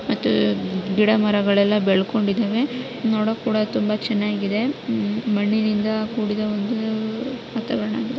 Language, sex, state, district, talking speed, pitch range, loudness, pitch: Kannada, female, Karnataka, Raichur, 90 wpm, 205-225 Hz, -21 LUFS, 215 Hz